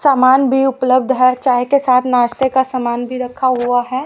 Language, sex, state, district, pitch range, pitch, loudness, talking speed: Hindi, female, Haryana, Rohtak, 250-265 Hz, 255 Hz, -14 LUFS, 205 wpm